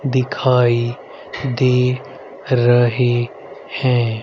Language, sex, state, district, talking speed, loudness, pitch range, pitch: Hindi, male, Haryana, Rohtak, 55 wpm, -17 LUFS, 120-130 Hz, 125 Hz